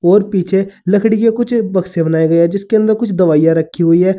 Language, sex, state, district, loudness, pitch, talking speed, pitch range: Hindi, male, Uttar Pradesh, Saharanpur, -13 LUFS, 190 Hz, 230 wpm, 170-215 Hz